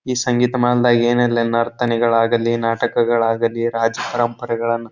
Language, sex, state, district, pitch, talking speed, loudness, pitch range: Kannada, male, Karnataka, Bijapur, 120 Hz, 160 wpm, -18 LUFS, 115-120 Hz